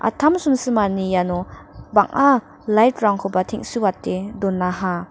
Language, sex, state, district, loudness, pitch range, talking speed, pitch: Garo, female, Meghalaya, North Garo Hills, -19 LUFS, 185-240 Hz, 80 wpm, 210 Hz